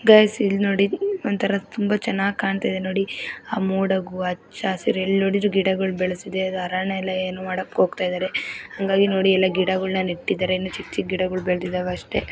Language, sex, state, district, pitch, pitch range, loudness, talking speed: Kannada, female, Karnataka, Belgaum, 190 Hz, 185-200 Hz, -22 LUFS, 140 wpm